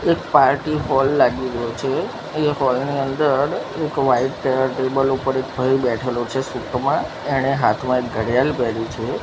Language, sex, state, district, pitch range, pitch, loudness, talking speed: Gujarati, male, Gujarat, Gandhinagar, 125-135 Hz, 130 Hz, -20 LUFS, 180 wpm